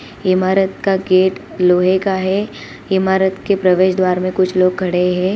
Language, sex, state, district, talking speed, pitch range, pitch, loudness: Hindi, female, Bihar, Gopalganj, 170 wpm, 185-190 Hz, 185 Hz, -15 LUFS